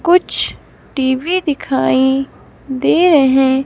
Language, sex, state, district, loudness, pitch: Hindi, female, Himachal Pradesh, Shimla, -14 LUFS, 265 Hz